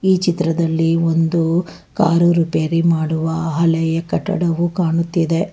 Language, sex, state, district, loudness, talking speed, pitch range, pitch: Kannada, female, Karnataka, Bangalore, -17 LUFS, 100 wpm, 165-170 Hz, 165 Hz